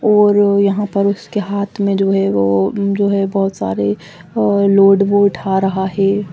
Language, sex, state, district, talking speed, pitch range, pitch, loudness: Hindi, female, Chandigarh, Chandigarh, 190 wpm, 190-200 Hz, 200 Hz, -15 LUFS